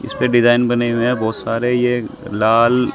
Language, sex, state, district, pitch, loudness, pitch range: Hindi, male, Delhi, New Delhi, 120 Hz, -16 LUFS, 115-125 Hz